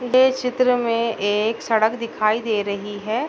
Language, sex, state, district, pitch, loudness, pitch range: Hindi, female, Bihar, Darbhanga, 230 Hz, -21 LUFS, 215-245 Hz